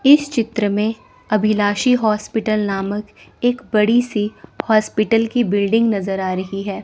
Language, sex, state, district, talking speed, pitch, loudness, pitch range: Hindi, female, Chandigarh, Chandigarh, 140 wpm, 215 Hz, -18 LUFS, 205-230 Hz